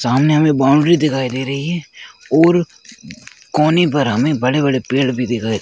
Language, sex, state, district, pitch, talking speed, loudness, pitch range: Hindi, male, Chhattisgarh, Balrampur, 145 Hz, 180 wpm, -15 LUFS, 130-165 Hz